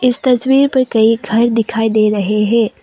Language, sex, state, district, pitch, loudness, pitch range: Hindi, female, Assam, Kamrup Metropolitan, 230 Hz, -13 LUFS, 215-250 Hz